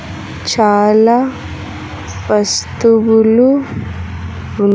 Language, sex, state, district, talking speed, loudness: Telugu, female, Andhra Pradesh, Sri Satya Sai, 40 wpm, -12 LUFS